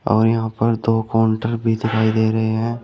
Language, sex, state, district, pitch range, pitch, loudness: Hindi, male, Uttar Pradesh, Shamli, 110-115 Hz, 110 Hz, -19 LUFS